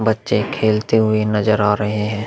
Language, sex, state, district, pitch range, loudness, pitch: Hindi, male, Uttar Pradesh, Muzaffarnagar, 105-110 Hz, -17 LUFS, 110 Hz